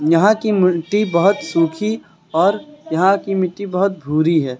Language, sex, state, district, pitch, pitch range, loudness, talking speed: Hindi, male, Uttar Pradesh, Lucknow, 190 Hz, 165-205 Hz, -17 LUFS, 155 wpm